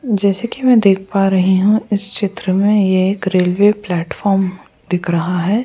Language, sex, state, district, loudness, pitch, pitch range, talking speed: Hindi, female, Goa, North and South Goa, -15 LUFS, 195 Hz, 185-205 Hz, 180 wpm